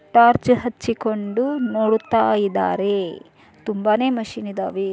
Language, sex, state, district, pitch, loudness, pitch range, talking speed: Kannada, male, Karnataka, Dharwad, 220 Hz, -20 LUFS, 205-240 Hz, 85 wpm